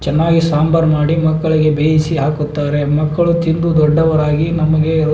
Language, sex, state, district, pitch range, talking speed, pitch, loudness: Kannada, male, Karnataka, Belgaum, 150-160 Hz, 130 wpm, 155 Hz, -14 LUFS